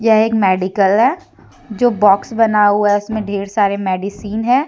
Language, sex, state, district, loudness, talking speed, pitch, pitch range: Hindi, female, Jharkhand, Deoghar, -15 LUFS, 180 wpm, 205 Hz, 200-220 Hz